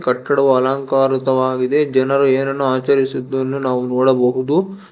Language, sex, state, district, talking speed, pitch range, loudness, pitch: Kannada, male, Karnataka, Bangalore, 85 wpm, 130-140 Hz, -16 LUFS, 130 Hz